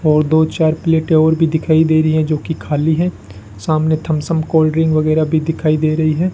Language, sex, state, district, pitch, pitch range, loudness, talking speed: Hindi, male, Rajasthan, Bikaner, 155 Hz, 155-160 Hz, -15 LUFS, 225 wpm